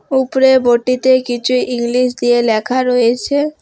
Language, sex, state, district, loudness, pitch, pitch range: Bengali, female, West Bengal, Alipurduar, -14 LUFS, 250 Hz, 240-260 Hz